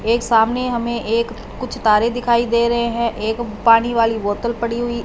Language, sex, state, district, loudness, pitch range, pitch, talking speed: Hindi, female, Punjab, Fazilka, -18 LUFS, 225-235 Hz, 235 Hz, 190 wpm